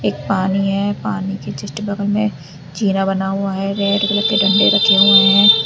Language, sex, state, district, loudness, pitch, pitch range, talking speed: Hindi, female, Uttar Pradesh, Lalitpur, -15 LUFS, 200 Hz, 195-205 Hz, 190 wpm